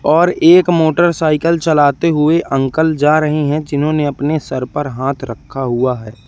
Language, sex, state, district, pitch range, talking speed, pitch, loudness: Hindi, male, Madhya Pradesh, Katni, 135-160 Hz, 160 wpm, 150 Hz, -14 LUFS